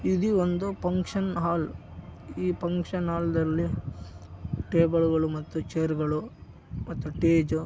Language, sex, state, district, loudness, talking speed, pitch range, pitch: Kannada, male, Karnataka, Raichur, -28 LUFS, 110 wpm, 150-175 Hz, 165 Hz